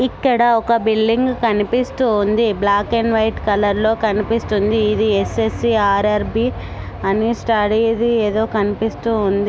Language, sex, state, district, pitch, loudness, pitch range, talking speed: Telugu, female, Andhra Pradesh, Anantapur, 220 Hz, -17 LUFS, 210-230 Hz, 120 wpm